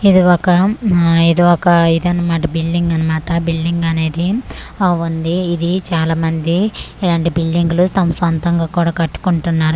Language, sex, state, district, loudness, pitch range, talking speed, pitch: Telugu, female, Andhra Pradesh, Manyam, -15 LUFS, 165-175 Hz, 135 wpm, 170 Hz